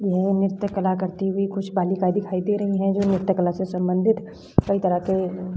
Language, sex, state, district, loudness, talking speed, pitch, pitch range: Hindi, female, Bihar, Vaishali, -23 LUFS, 215 wpm, 190 Hz, 185-195 Hz